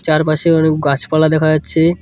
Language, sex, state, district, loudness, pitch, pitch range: Bengali, male, West Bengal, Cooch Behar, -14 LUFS, 155 Hz, 155-160 Hz